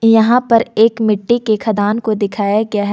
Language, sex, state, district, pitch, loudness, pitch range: Hindi, female, Jharkhand, Ranchi, 220 Hz, -14 LUFS, 205-225 Hz